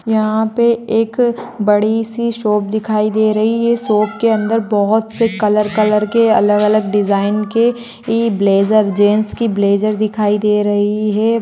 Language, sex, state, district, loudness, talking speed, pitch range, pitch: Magahi, female, Bihar, Gaya, -14 LUFS, 150 wpm, 210-225 Hz, 215 Hz